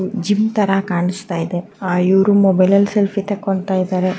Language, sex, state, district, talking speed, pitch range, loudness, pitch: Kannada, female, Karnataka, Mysore, 130 wpm, 185-200 Hz, -16 LUFS, 195 Hz